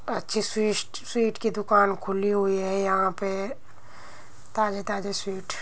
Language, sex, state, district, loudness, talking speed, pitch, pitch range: Hindi, female, Uttar Pradesh, Muzaffarnagar, -26 LUFS, 150 wpm, 200 Hz, 195-215 Hz